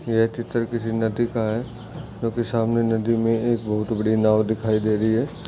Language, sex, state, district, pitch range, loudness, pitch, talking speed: Hindi, male, Chhattisgarh, Bastar, 110-115 Hz, -22 LUFS, 115 Hz, 205 wpm